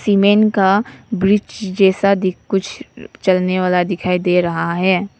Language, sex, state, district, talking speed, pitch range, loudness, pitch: Hindi, female, Nagaland, Kohima, 140 wpm, 180-200 Hz, -16 LUFS, 190 Hz